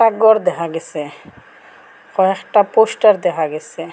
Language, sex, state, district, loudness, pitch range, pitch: Bengali, female, Assam, Hailakandi, -16 LUFS, 165-215 Hz, 190 Hz